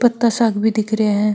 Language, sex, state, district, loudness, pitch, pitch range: Marwari, female, Rajasthan, Nagaur, -17 LUFS, 220 Hz, 210-230 Hz